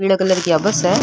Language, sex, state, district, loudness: Rajasthani, female, Rajasthan, Nagaur, -16 LUFS